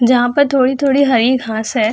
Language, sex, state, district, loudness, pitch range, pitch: Hindi, female, Bihar, Samastipur, -14 LUFS, 235-275 Hz, 255 Hz